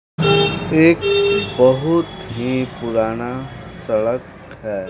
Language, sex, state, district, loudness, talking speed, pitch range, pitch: Hindi, male, Bihar, West Champaran, -17 LUFS, 75 wpm, 120-170 Hz, 130 Hz